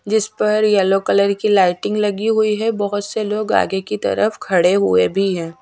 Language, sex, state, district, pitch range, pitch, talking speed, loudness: Hindi, female, Chhattisgarh, Raipur, 190-215 Hz, 205 Hz, 205 wpm, -17 LUFS